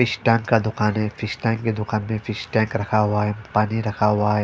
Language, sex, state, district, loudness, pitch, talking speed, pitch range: Hindi, female, Punjab, Fazilka, -22 LUFS, 110 Hz, 255 wpm, 105-115 Hz